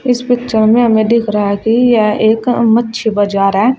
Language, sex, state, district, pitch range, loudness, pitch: Hindi, female, Uttar Pradesh, Shamli, 215-240 Hz, -12 LUFS, 225 Hz